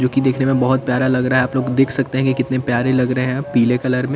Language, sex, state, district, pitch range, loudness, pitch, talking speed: Hindi, male, Chandigarh, Chandigarh, 125-130 Hz, -17 LUFS, 130 Hz, 315 wpm